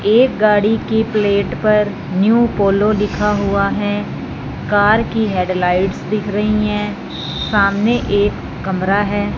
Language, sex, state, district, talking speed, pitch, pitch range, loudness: Hindi, female, Punjab, Fazilka, 130 wpm, 205 Hz, 200-215 Hz, -16 LUFS